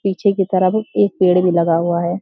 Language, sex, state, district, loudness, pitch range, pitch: Hindi, female, Uttarakhand, Uttarkashi, -16 LUFS, 175-200 Hz, 185 Hz